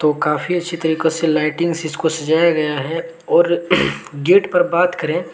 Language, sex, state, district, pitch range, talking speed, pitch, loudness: Hindi, male, Jharkhand, Deoghar, 155-170 Hz, 170 wpm, 165 Hz, -17 LUFS